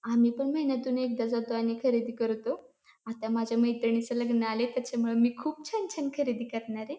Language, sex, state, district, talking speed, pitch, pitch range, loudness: Marathi, female, Maharashtra, Pune, 170 wpm, 235 Hz, 230-265 Hz, -30 LUFS